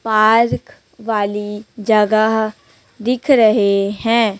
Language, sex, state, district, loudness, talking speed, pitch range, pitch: Hindi, female, Chhattisgarh, Raipur, -16 LUFS, 80 wpm, 210-225 Hz, 215 Hz